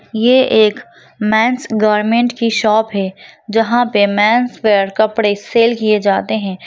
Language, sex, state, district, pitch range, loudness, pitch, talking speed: Hindi, female, Bihar, Jahanabad, 210-230 Hz, -14 LUFS, 220 Hz, 145 wpm